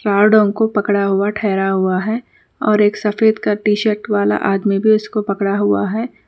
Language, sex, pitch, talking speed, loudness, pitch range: Urdu, female, 210 Hz, 170 wpm, -16 LUFS, 200-215 Hz